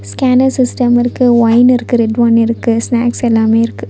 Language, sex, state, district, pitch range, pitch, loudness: Tamil, female, Tamil Nadu, Nilgiris, 230-245 Hz, 235 Hz, -11 LUFS